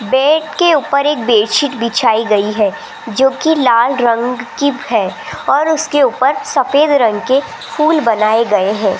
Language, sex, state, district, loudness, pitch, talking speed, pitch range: Hindi, female, Rajasthan, Jaipur, -13 LUFS, 260 Hz, 165 wpm, 225-290 Hz